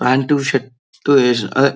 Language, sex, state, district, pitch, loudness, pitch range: Telugu, male, Andhra Pradesh, Srikakulam, 135 Hz, -16 LUFS, 130-140 Hz